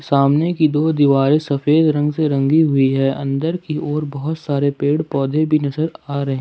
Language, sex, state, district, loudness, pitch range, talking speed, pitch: Hindi, male, Jharkhand, Ranchi, -17 LUFS, 140-155 Hz, 195 wpm, 145 Hz